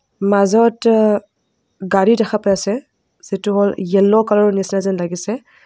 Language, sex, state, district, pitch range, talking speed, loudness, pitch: Assamese, female, Assam, Kamrup Metropolitan, 195-215 Hz, 140 wpm, -16 LUFS, 200 Hz